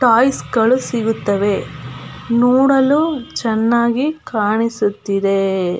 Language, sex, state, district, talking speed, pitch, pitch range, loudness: Kannada, female, Karnataka, Belgaum, 60 wpm, 230 Hz, 205-255 Hz, -16 LUFS